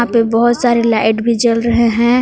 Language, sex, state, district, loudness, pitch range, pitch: Hindi, female, Jharkhand, Palamu, -13 LUFS, 230-240 Hz, 235 Hz